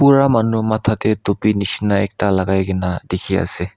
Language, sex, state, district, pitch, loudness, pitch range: Nagamese, male, Nagaland, Kohima, 100 Hz, -17 LUFS, 95-110 Hz